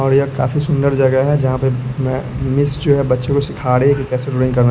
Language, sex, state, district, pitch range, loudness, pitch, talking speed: Hindi, male, Bihar, West Champaran, 130-140 Hz, -16 LUFS, 135 Hz, 280 wpm